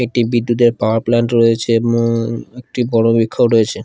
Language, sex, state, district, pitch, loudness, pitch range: Bengali, male, Odisha, Khordha, 115 Hz, -15 LUFS, 115-120 Hz